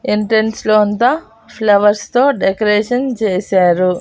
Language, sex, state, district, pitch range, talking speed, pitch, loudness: Telugu, female, Andhra Pradesh, Annamaya, 205-240 Hz, 105 wpm, 215 Hz, -14 LUFS